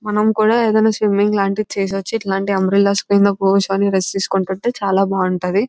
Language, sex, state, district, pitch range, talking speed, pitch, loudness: Telugu, female, Telangana, Nalgonda, 195-210 Hz, 145 wpm, 200 Hz, -16 LUFS